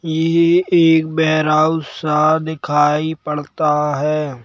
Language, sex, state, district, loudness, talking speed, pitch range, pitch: Hindi, male, Madhya Pradesh, Bhopal, -16 LUFS, 110 wpm, 150-160 Hz, 155 Hz